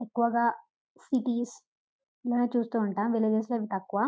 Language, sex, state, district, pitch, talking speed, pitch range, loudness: Telugu, female, Telangana, Karimnagar, 235 Hz, 90 wpm, 220-245 Hz, -29 LUFS